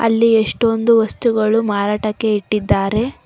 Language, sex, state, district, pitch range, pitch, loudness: Kannada, female, Karnataka, Bangalore, 210-230 Hz, 220 Hz, -16 LUFS